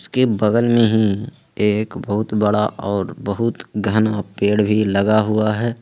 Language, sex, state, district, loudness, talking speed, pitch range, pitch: Hindi, male, Jharkhand, Ranchi, -18 LUFS, 155 wpm, 105-115 Hz, 105 Hz